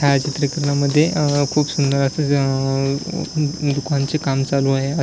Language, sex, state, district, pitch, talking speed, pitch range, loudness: Marathi, male, Maharashtra, Washim, 140 Hz, 120 wpm, 135-150 Hz, -19 LUFS